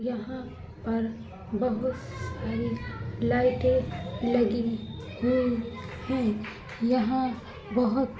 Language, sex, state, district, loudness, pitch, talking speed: Hindi, female, Uttar Pradesh, Budaun, -29 LUFS, 230 Hz, 80 wpm